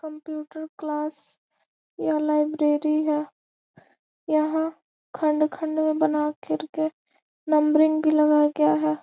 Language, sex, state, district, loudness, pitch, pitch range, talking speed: Hindi, female, Bihar, Gopalganj, -24 LUFS, 305 Hz, 300-315 Hz, 105 wpm